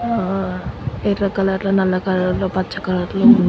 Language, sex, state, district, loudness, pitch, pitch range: Telugu, female, Andhra Pradesh, Srikakulam, -19 LUFS, 190 Hz, 185-195 Hz